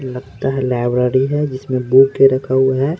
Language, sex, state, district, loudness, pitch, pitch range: Hindi, male, Bihar, Patna, -15 LUFS, 130 Hz, 130-135 Hz